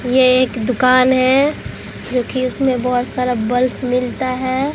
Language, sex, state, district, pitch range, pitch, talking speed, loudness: Hindi, female, Bihar, Katihar, 250-255 Hz, 255 Hz, 150 wpm, -16 LUFS